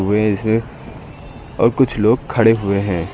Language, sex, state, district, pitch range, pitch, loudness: Hindi, male, Uttar Pradesh, Lucknow, 100-115 Hz, 110 Hz, -16 LUFS